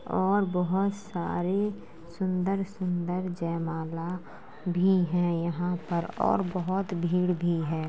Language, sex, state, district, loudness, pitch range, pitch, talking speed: Hindi, female, Uttar Pradesh, Jalaun, -29 LUFS, 170-190 Hz, 180 Hz, 105 wpm